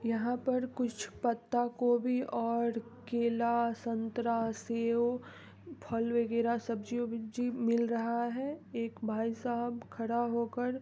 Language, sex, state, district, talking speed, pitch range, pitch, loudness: Hindi, female, Bihar, East Champaran, 120 wpm, 230-240 Hz, 235 Hz, -34 LUFS